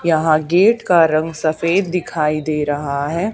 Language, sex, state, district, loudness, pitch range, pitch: Hindi, female, Haryana, Charkhi Dadri, -17 LUFS, 155-180 Hz, 160 Hz